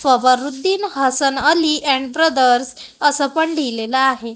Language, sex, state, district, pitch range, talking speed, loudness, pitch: Marathi, female, Maharashtra, Gondia, 255-305 Hz, 125 wpm, -16 LUFS, 275 Hz